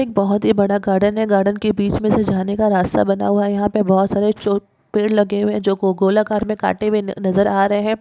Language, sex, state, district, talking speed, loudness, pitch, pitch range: Hindi, female, Maharashtra, Solapur, 240 wpm, -17 LUFS, 205 Hz, 195-210 Hz